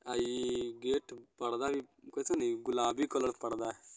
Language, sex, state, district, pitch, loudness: Bajjika, male, Bihar, Vaishali, 140 Hz, -35 LUFS